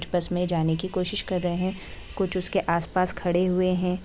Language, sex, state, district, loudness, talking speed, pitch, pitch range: Hindi, female, Bihar, Purnia, -25 LUFS, 205 wpm, 180 Hz, 175-185 Hz